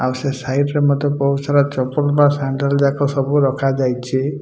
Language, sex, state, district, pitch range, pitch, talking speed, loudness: Odia, male, Odisha, Malkangiri, 135-145 Hz, 140 Hz, 190 wpm, -17 LUFS